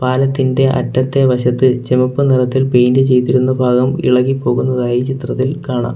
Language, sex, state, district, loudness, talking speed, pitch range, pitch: Malayalam, male, Kerala, Kollam, -14 LUFS, 120 wpm, 125-130 Hz, 130 Hz